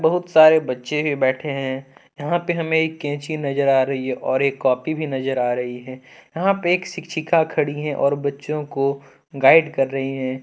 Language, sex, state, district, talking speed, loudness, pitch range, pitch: Hindi, male, Jharkhand, Deoghar, 205 wpm, -20 LUFS, 135-160 Hz, 140 Hz